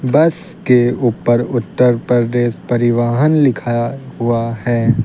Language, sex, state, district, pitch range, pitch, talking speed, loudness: Hindi, male, Uttar Pradesh, Lucknow, 120-125 Hz, 120 Hz, 105 wpm, -15 LUFS